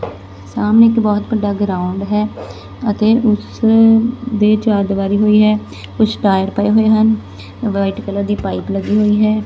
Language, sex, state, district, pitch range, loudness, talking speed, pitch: Punjabi, female, Punjab, Fazilka, 195-220 Hz, -14 LUFS, 160 wpm, 210 Hz